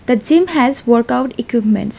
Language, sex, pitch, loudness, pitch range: English, female, 245 Hz, -14 LUFS, 235-260 Hz